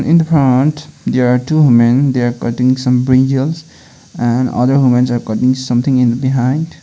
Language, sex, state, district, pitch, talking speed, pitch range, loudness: English, male, Sikkim, Gangtok, 130 Hz, 175 wpm, 125-135 Hz, -13 LUFS